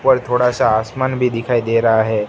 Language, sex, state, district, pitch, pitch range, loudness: Hindi, male, Gujarat, Gandhinagar, 120 Hz, 110-125 Hz, -16 LUFS